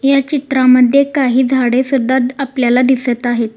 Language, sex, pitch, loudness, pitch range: Marathi, female, 260 Hz, -13 LUFS, 245-270 Hz